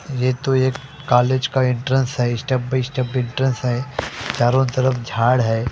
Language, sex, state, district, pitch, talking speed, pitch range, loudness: Hindi, male, Delhi, New Delhi, 130 Hz, 170 wpm, 125-130 Hz, -19 LUFS